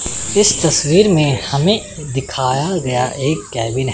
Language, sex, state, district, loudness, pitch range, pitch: Hindi, male, Chandigarh, Chandigarh, -15 LUFS, 130-165 Hz, 140 Hz